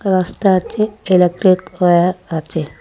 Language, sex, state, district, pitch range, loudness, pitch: Bengali, female, Assam, Hailakandi, 175-195 Hz, -15 LUFS, 185 Hz